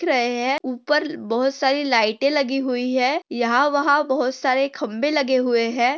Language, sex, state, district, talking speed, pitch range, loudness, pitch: Hindi, female, Maharashtra, Pune, 170 wpm, 245-285 Hz, -20 LUFS, 265 Hz